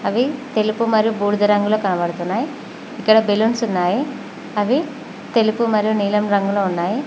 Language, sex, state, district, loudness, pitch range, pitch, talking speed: Telugu, female, Telangana, Mahabubabad, -18 LUFS, 205-240 Hz, 215 Hz, 125 wpm